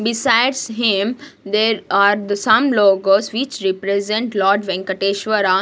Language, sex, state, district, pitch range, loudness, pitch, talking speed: English, female, Punjab, Kapurthala, 195-225 Hz, -17 LUFS, 205 Hz, 115 wpm